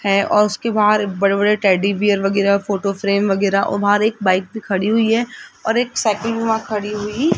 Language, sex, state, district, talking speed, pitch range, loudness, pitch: Hindi, female, Rajasthan, Jaipur, 210 wpm, 200-220 Hz, -17 LUFS, 205 Hz